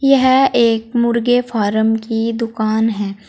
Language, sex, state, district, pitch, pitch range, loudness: Hindi, female, Uttar Pradesh, Saharanpur, 230 Hz, 220-245 Hz, -15 LUFS